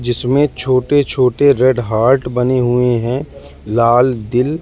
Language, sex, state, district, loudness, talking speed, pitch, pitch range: Hindi, male, Madhya Pradesh, Katni, -14 LUFS, 130 wpm, 125 Hz, 120-130 Hz